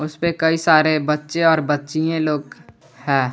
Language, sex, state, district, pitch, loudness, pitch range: Hindi, male, Jharkhand, Garhwa, 155 Hz, -18 LUFS, 150-160 Hz